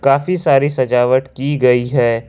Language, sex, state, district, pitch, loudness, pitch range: Hindi, male, Jharkhand, Ranchi, 130 Hz, -15 LUFS, 125-140 Hz